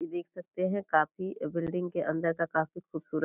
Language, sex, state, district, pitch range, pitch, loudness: Hindi, female, Bihar, Purnia, 160-185 Hz, 175 Hz, -32 LUFS